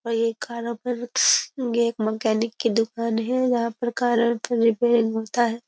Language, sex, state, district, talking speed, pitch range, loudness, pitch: Hindi, female, Uttar Pradesh, Jyotiba Phule Nagar, 160 wpm, 230-240 Hz, -23 LUFS, 235 Hz